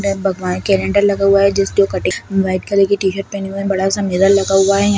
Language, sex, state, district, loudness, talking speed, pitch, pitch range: Kumaoni, female, Uttarakhand, Tehri Garhwal, -15 LUFS, 265 wpm, 195 Hz, 195-200 Hz